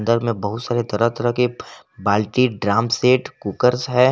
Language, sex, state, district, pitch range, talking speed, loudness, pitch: Hindi, male, Jharkhand, Garhwa, 110-125 Hz, 175 wpm, -19 LUFS, 120 Hz